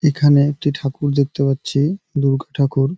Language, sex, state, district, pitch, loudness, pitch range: Bengali, male, West Bengal, Jalpaiguri, 140 Hz, -18 LUFS, 135-145 Hz